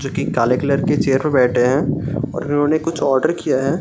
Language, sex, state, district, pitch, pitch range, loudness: Hindi, male, Bihar, Gaya, 140 Hz, 135-150 Hz, -17 LUFS